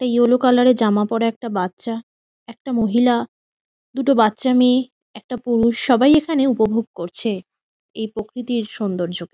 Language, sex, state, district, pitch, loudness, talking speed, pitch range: Bengali, female, West Bengal, Kolkata, 230 Hz, -18 LUFS, 140 wpm, 215-250 Hz